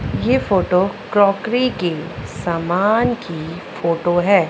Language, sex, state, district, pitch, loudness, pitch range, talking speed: Hindi, female, Punjab, Pathankot, 175 Hz, -18 LUFS, 165-205 Hz, 105 wpm